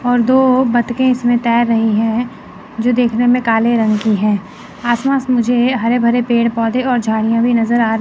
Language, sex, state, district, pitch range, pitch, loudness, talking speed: Hindi, female, Chandigarh, Chandigarh, 225-245 Hz, 235 Hz, -14 LUFS, 195 wpm